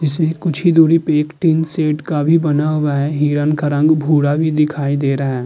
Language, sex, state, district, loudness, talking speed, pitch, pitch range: Hindi, female, Uttar Pradesh, Hamirpur, -15 LUFS, 240 wpm, 150 Hz, 145-160 Hz